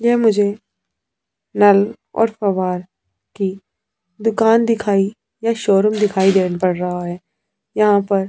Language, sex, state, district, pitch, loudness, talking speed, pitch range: Hindi, female, Punjab, Pathankot, 200 Hz, -17 LUFS, 125 wpm, 185-220 Hz